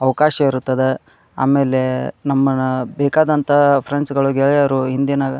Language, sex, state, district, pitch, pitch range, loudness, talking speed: Kannada, male, Karnataka, Dharwad, 135 Hz, 130-140 Hz, -16 LUFS, 110 wpm